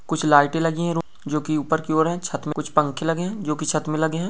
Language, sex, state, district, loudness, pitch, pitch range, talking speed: Hindi, male, Chhattisgarh, Bastar, -22 LUFS, 160 Hz, 150-165 Hz, 335 wpm